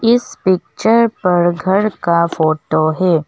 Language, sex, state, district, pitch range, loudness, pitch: Hindi, female, Arunachal Pradesh, Longding, 165-210 Hz, -15 LUFS, 180 Hz